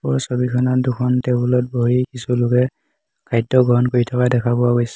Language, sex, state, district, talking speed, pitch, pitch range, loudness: Assamese, male, Assam, Hailakandi, 195 wpm, 125 Hz, 120-125 Hz, -18 LUFS